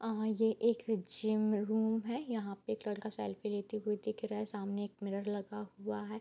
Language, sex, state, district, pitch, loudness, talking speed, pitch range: Hindi, female, Bihar, Bhagalpur, 215 Hz, -37 LUFS, 210 wpm, 205-220 Hz